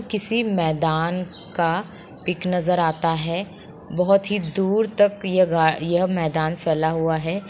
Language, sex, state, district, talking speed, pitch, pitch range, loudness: Hindi, female, Bihar, Sitamarhi, 130 wpm, 175 Hz, 165-195 Hz, -22 LUFS